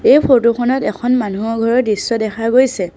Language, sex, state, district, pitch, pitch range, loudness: Assamese, female, Assam, Sonitpur, 235 Hz, 220-255 Hz, -15 LUFS